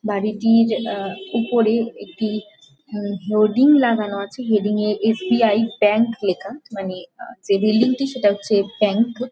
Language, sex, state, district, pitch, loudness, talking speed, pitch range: Bengali, female, West Bengal, Jhargram, 215 Hz, -19 LUFS, 135 wpm, 205-230 Hz